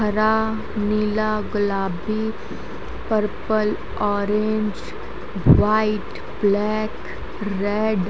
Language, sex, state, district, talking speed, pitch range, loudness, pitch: Hindi, female, Haryana, Charkhi Dadri, 65 wpm, 205-215 Hz, -22 LUFS, 215 Hz